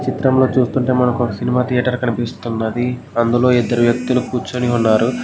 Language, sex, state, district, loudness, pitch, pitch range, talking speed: Telugu, male, Andhra Pradesh, Guntur, -17 LUFS, 125 Hz, 120-125 Hz, 125 wpm